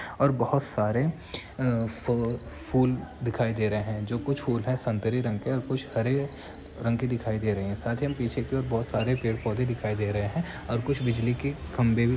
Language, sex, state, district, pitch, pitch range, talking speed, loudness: Hindi, male, Uttar Pradesh, Ghazipur, 120 Hz, 110-130 Hz, 225 wpm, -28 LUFS